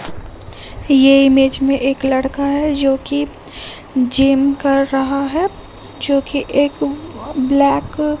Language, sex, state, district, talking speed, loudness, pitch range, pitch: Hindi, female, Bihar, Katihar, 125 wpm, -15 LUFS, 270-285 Hz, 275 Hz